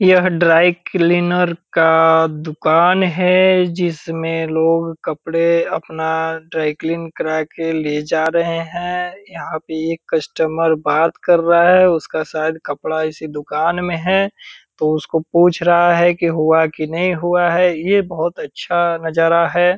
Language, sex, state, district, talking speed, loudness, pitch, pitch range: Hindi, male, Bihar, Purnia, 150 wpm, -16 LUFS, 165 Hz, 160-175 Hz